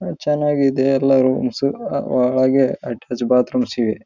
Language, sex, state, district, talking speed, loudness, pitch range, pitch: Kannada, male, Karnataka, Raichur, 160 wpm, -18 LUFS, 125-140 Hz, 130 Hz